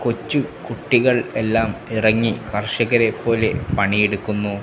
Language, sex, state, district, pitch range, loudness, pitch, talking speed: Malayalam, male, Kerala, Kasaragod, 105-120 Hz, -19 LUFS, 115 Hz, 90 wpm